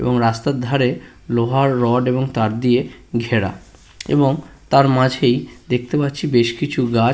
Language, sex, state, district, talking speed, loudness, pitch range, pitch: Bengali, male, West Bengal, Purulia, 145 wpm, -18 LUFS, 115-135 Hz, 125 Hz